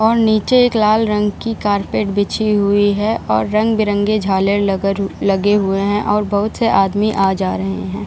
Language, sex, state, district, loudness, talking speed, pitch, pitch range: Hindi, female, Bihar, Jahanabad, -16 LUFS, 195 wpm, 205 Hz, 195-215 Hz